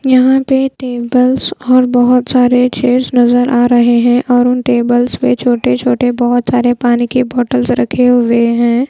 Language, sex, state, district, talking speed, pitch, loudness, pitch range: Hindi, female, Bihar, Patna, 170 wpm, 245 Hz, -11 LUFS, 245-255 Hz